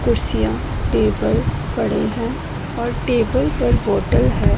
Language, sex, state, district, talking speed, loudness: Hindi, female, Punjab, Pathankot, 120 wpm, -19 LUFS